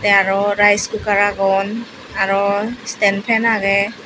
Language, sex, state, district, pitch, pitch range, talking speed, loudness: Chakma, female, Tripura, Unakoti, 205 Hz, 200-220 Hz, 135 wpm, -16 LUFS